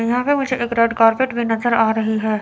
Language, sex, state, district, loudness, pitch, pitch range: Hindi, female, Chandigarh, Chandigarh, -17 LUFS, 230 Hz, 225-245 Hz